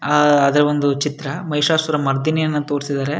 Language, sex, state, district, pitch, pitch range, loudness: Kannada, male, Karnataka, Shimoga, 150 Hz, 140-150 Hz, -18 LUFS